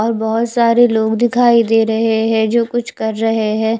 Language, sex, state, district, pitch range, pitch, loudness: Hindi, female, Odisha, Khordha, 220-235 Hz, 225 Hz, -14 LUFS